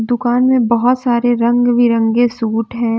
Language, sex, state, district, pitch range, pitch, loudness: Hindi, female, Bihar, West Champaran, 230-245 Hz, 240 Hz, -14 LUFS